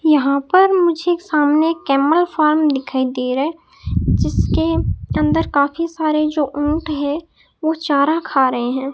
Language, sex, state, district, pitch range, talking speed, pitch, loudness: Hindi, male, Rajasthan, Bikaner, 280-325 Hz, 155 wpm, 305 Hz, -17 LUFS